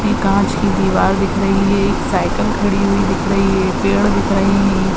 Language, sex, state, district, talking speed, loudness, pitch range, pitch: Hindi, female, Uttar Pradesh, Hamirpur, 215 wpm, -15 LUFS, 195-200 Hz, 195 Hz